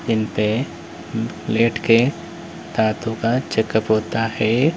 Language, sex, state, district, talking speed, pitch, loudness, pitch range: Hindi, male, Uttar Pradesh, Lalitpur, 100 wpm, 115 Hz, -20 LUFS, 110-130 Hz